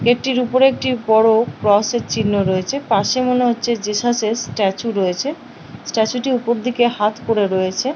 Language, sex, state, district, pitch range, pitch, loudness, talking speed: Bengali, female, West Bengal, Paschim Medinipur, 210-250 Hz, 230 Hz, -17 LUFS, 160 wpm